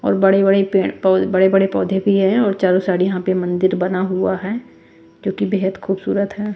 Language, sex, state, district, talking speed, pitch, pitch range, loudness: Hindi, female, Bihar, West Champaran, 190 wpm, 190 Hz, 185-195 Hz, -17 LUFS